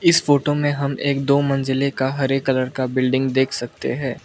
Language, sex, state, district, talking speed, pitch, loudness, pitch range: Hindi, male, Arunachal Pradesh, Lower Dibang Valley, 210 wpm, 135 Hz, -20 LUFS, 130-140 Hz